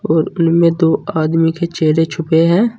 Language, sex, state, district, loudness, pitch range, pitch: Hindi, male, Uttar Pradesh, Saharanpur, -14 LUFS, 160-170 Hz, 165 Hz